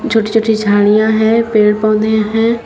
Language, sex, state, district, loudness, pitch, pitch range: Hindi, female, Uttar Pradesh, Shamli, -12 LUFS, 220 Hz, 215-225 Hz